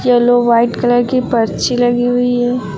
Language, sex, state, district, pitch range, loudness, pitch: Hindi, female, Uttar Pradesh, Lucknow, 240-245 Hz, -13 LUFS, 245 Hz